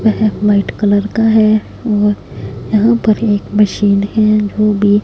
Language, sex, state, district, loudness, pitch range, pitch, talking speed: Hindi, female, Punjab, Fazilka, -13 LUFS, 205-215 Hz, 210 Hz, 155 wpm